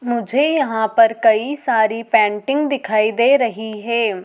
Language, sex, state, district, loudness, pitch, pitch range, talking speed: Hindi, female, Madhya Pradesh, Dhar, -17 LUFS, 230 Hz, 220-270 Hz, 140 wpm